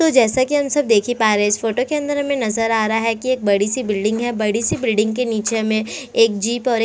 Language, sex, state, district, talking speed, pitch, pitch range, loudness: Hindi, female, Chhattisgarh, Korba, 305 wpm, 225 Hz, 220-250 Hz, -18 LUFS